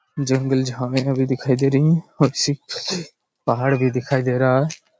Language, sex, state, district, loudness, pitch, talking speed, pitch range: Hindi, male, Chhattisgarh, Raigarh, -20 LUFS, 135 Hz, 170 wpm, 130-140 Hz